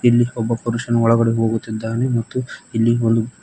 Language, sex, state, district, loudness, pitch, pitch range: Kannada, male, Karnataka, Koppal, -19 LUFS, 115 Hz, 115-120 Hz